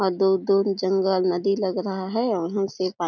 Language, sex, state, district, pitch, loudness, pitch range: Chhattisgarhi, female, Chhattisgarh, Jashpur, 190 Hz, -23 LUFS, 185-195 Hz